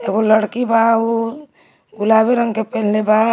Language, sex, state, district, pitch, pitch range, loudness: Magahi, female, Jharkhand, Palamu, 225 Hz, 215-230 Hz, -16 LUFS